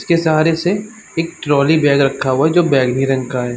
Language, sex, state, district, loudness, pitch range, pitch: Hindi, male, Uttar Pradesh, Varanasi, -15 LUFS, 135-170 Hz, 155 Hz